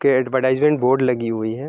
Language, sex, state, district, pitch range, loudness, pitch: Hindi, male, Jharkhand, Sahebganj, 125-135 Hz, -18 LUFS, 130 Hz